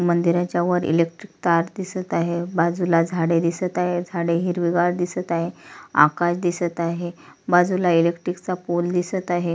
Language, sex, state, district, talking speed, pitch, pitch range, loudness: Marathi, female, Maharashtra, Solapur, 145 wpm, 175 Hz, 170-180 Hz, -22 LUFS